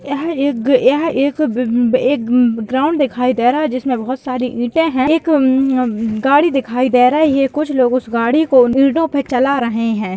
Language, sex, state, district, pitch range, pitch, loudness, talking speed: Hindi, female, Bihar, Kishanganj, 245-285 Hz, 260 Hz, -15 LUFS, 200 wpm